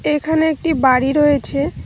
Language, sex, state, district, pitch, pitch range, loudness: Bengali, female, West Bengal, Cooch Behar, 295 Hz, 275-315 Hz, -16 LUFS